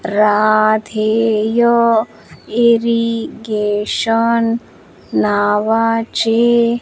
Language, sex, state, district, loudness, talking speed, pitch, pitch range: Marathi, female, Maharashtra, Washim, -15 LUFS, 35 wpm, 225 Hz, 210-230 Hz